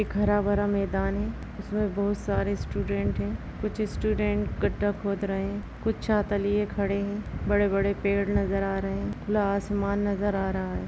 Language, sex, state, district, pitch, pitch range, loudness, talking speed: Hindi, female, Bihar, Gopalganj, 200 Hz, 195-205 Hz, -28 LUFS, 180 wpm